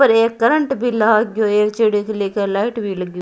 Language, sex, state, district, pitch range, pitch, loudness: Rajasthani, female, Rajasthan, Churu, 205-230 Hz, 215 Hz, -17 LUFS